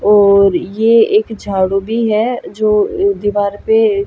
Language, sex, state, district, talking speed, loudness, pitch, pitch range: Hindi, female, Haryana, Jhajjar, 160 wpm, -13 LUFS, 215 Hz, 200-240 Hz